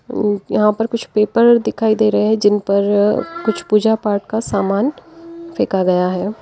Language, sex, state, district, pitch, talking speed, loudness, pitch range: Hindi, female, Uttar Pradesh, Lalitpur, 215 Hz, 185 wpm, -16 LUFS, 205-225 Hz